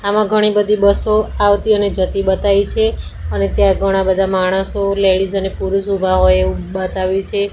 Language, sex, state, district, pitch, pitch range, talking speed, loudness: Gujarati, female, Gujarat, Gandhinagar, 195 Hz, 185-200 Hz, 175 wpm, -15 LUFS